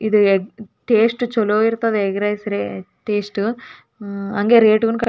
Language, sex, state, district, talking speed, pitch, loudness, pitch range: Kannada, female, Karnataka, Raichur, 165 wpm, 215 Hz, -18 LUFS, 200-225 Hz